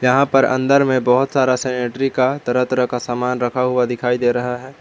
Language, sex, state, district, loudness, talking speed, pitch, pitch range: Hindi, male, Jharkhand, Palamu, -17 LUFS, 225 wpm, 125 Hz, 125-130 Hz